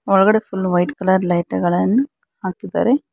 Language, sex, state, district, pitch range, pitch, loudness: Kannada, female, Karnataka, Bangalore, 185-220 Hz, 190 Hz, -18 LUFS